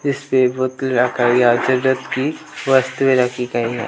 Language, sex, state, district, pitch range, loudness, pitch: Hindi, male, Bihar, West Champaran, 125-130 Hz, -17 LUFS, 130 Hz